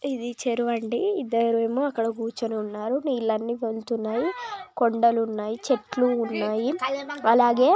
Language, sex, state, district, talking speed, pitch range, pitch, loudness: Telugu, female, Andhra Pradesh, Chittoor, 100 wpm, 225-265 Hz, 235 Hz, -25 LUFS